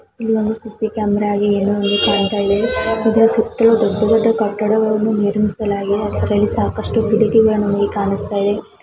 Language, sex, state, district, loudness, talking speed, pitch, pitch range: Kannada, female, Karnataka, Belgaum, -16 LUFS, 120 wpm, 210 Hz, 205-220 Hz